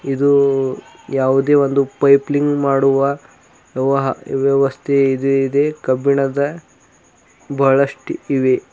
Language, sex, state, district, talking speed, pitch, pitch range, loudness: Kannada, male, Karnataka, Bidar, 80 wpm, 135 Hz, 135-140 Hz, -16 LUFS